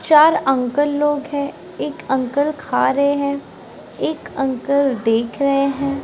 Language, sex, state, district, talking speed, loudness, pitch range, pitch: Hindi, female, Maharashtra, Mumbai Suburban, 140 wpm, -19 LUFS, 270-290 Hz, 280 Hz